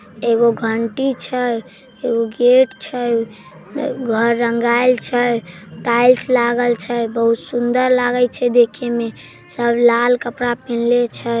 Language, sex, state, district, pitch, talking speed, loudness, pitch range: Maithili, female, Bihar, Samastipur, 240 Hz, 120 wpm, -17 LUFS, 230-245 Hz